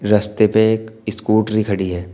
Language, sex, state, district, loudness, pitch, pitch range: Hindi, male, Uttar Pradesh, Shamli, -17 LUFS, 105 Hz, 100-110 Hz